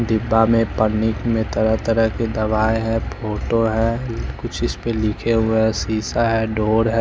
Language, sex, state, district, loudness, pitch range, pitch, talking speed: Hindi, male, Chandigarh, Chandigarh, -19 LUFS, 110-115 Hz, 110 Hz, 190 wpm